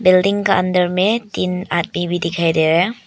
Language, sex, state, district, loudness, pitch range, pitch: Hindi, female, Arunachal Pradesh, Papum Pare, -17 LUFS, 175-195 Hz, 180 Hz